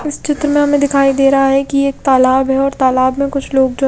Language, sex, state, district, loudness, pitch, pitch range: Hindi, female, Chhattisgarh, Raipur, -13 LUFS, 275 Hz, 265-280 Hz